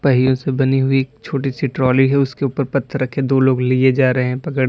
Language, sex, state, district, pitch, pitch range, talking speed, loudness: Hindi, male, Uttar Pradesh, Lalitpur, 135 Hz, 130-140 Hz, 245 wpm, -17 LUFS